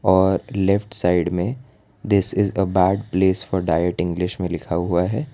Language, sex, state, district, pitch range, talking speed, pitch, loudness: Hindi, male, Gujarat, Valsad, 90-100 Hz, 180 wpm, 95 Hz, -20 LUFS